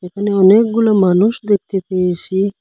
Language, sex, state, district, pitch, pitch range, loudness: Bengali, male, Assam, Hailakandi, 195 Hz, 185-210 Hz, -14 LUFS